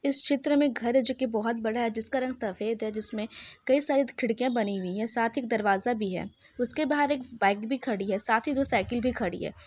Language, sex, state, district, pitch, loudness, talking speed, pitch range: Hindi, female, Bihar, Saran, 235 Hz, -28 LUFS, 260 wpm, 220-265 Hz